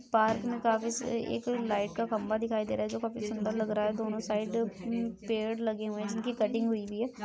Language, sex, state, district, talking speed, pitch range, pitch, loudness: Hindi, female, Jharkhand, Sahebganj, 240 wpm, 215-230 Hz, 220 Hz, -32 LUFS